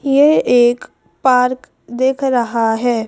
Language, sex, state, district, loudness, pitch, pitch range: Hindi, female, Madhya Pradesh, Bhopal, -14 LUFS, 250 Hz, 240-260 Hz